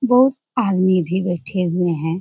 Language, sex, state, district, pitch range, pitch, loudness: Hindi, female, Bihar, Jamui, 175-245 Hz, 185 Hz, -19 LUFS